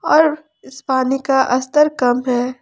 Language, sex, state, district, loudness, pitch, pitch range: Hindi, female, Jharkhand, Ranchi, -16 LUFS, 265 Hz, 255-300 Hz